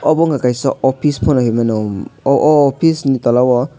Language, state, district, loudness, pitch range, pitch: Kokborok, Tripura, West Tripura, -14 LUFS, 120-150 Hz, 135 Hz